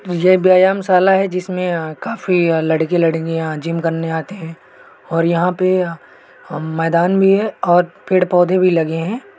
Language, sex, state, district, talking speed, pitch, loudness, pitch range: Hindi, male, Uttar Pradesh, Etah, 145 wpm, 175 Hz, -16 LUFS, 165-185 Hz